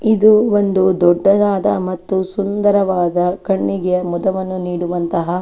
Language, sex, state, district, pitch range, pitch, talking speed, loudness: Kannada, female, Karnataka, Chamarajanagar, 175-200 Hz, 185 Hz, 90 wpm, -16 LUFS